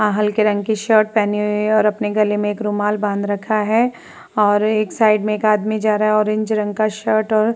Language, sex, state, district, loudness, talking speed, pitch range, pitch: Hindi, female, Uttar Pradesh, Varanasi, -17 LUFS, 220 wpm, 210-215 Hz, 215 Hz